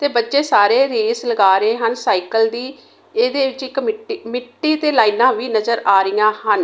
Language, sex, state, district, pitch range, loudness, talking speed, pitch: Punjabi, female, Punjab, Kapurthala, 220-295 Hz, -16 LUFS, 190 wpm, 245 Hz